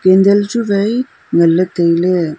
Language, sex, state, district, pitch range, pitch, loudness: Wancho, female, Arunachal Pradesh, Longding, 170-205 Hz, 185 Hz, -13 LUFS